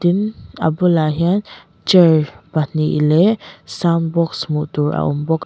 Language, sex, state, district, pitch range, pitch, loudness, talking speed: Mizo, female, Mizoram, Aizawl, 155-175 Hz, 160 Hz, -17 LUFS, 155 wpm